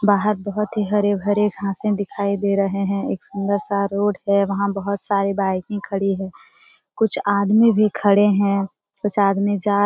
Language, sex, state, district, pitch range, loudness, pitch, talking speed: Hindi, female, Bihar, Jamui, 200-205 Hz, -20 LUFS, 200 Hz, 170 wpm